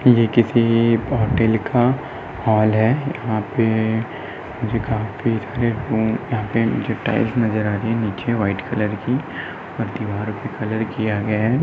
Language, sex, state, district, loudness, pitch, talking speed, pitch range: Hindi, male, Chhattisgarh, Sarguja, -20 LUFS, 110 Hz, 165 wpm, 110-120 Hz